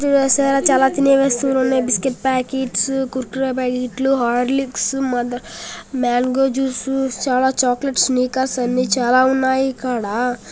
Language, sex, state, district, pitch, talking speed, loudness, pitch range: Telugu, male, Andhra Pradesh, Guntur, 260 Hz, 125 wpm, -18 LUFS, 250-270 Hz